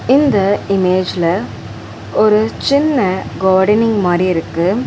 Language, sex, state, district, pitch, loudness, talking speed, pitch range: Tamil, female, Tamil Nadu, Chennai, 190 Hz, -14 LUFS, 85 wpm, 175-215 Hz